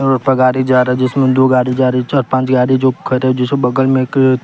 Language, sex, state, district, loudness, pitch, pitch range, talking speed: Hindi, male, Bihar, West Champaran, -13 LUFS, 130 Hz, 125-130 Hz, 310 wpm